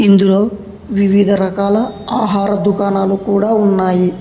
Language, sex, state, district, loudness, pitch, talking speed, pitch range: Telugu, male, Telangana, Hyderabad, -14 LUFS, 200 Hz, 100 wpm, 195-205 Hz